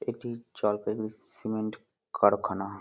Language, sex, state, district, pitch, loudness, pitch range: Bengali, male, West Bengal, Jalpaiguri, 110 Hz, -30 LUFS, 100-110 Hz